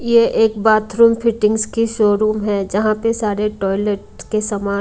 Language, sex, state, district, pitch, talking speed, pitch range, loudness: Hindi, female, Punjab, Kapurthala, 215 Hz, 160 wpm, 205-225 Hz, -17 LUFS